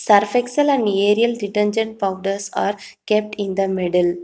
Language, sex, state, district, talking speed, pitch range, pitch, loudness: English, female, Telangana, Hyderabad, 155 wpm, 195-220 Hz, 205 Hz, -19 LUFS